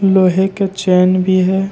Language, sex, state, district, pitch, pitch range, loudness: Hindi, male, Jharkhand, Ranchi, 190 Hz, 185-195 Hz, -13 LUFS